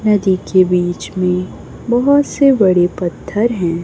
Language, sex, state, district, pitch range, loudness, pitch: Hindi, female, Chhattisgarh, Raipur, 180-225 Hz, -15 LUFS, 185 Hz